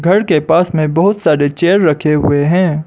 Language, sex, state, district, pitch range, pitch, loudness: Hindi, male, Arunachal Pradesh, Lower Dibang Valley, 150-180 Hz, 160 Hz, -12 LUFS